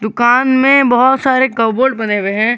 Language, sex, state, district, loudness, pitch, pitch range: Hindi, male, Jharkhand, Garhwa, -12 LUFS, 245 Hz, 220-265 Hz